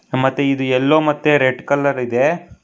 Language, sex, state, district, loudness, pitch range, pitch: Kannada, male, Karnataka, Bangalore, -16 LUFS, 130-150 Hz, 140 Hz